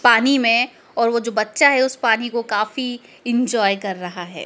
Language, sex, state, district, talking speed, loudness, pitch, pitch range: Hindi, female, Madhya Pradesh, Dhar, 200 wpm, -18 LUFS, 235 Hz, 215-255 Hz